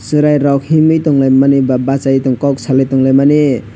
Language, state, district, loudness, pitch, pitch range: Kokborok, Tripura, West Tripura, -11 LUFS, 135 Hz, 135-145 Hz